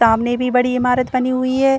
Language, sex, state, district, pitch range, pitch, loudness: Hindi, female, Bihar, Saran, 250-255 Hz, 250 Hz, -17 LUFS